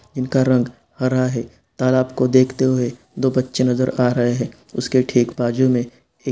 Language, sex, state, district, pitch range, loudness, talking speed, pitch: Hindi, male, Bihar, Saran, 120-130 Hz, -19 LUFS, 180 wpm, 125 Hz